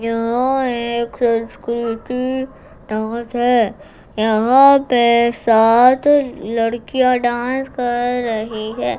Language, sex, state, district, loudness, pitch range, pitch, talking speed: Hindi, female, Gujarat, Gandhinagar, -16 LUFS, 230-250 Hz, 235 Hz, 85 wpm